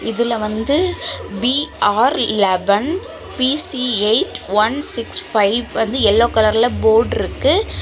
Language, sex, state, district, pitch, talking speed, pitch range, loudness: Tamil, female, Tamil Nadu, Kanyakumari, 235 Hz, 105 wpm, 215-270 Hz, -15 LUFS